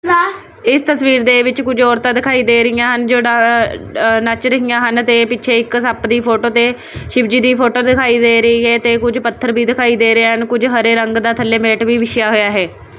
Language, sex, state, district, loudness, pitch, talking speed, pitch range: Punjabi, female, Punjab, Kapurthala, -12 LUFS, 235 Hz, 220 wpm, 230-245 Hz